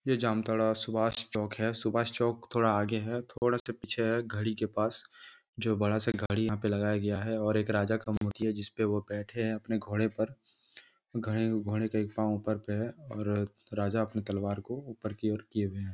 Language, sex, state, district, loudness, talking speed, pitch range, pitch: Hindi, male, Jharkhand, Jamtara, -32 LUFS, 215 wpm, 105-115 Hz, 110 Hz